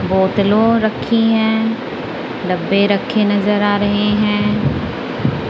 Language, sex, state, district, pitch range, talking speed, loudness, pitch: Hindi, female, Punjab, Kapurthala, 205-220 Hz, 100 wpm, -16 LUFS, 210 Hz